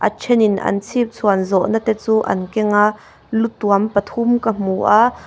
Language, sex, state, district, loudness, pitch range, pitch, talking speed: Mizo, female, Mizoram, Aizawl, -17 LUFS, 200-225 Hz, 215 Hz, 205 wpm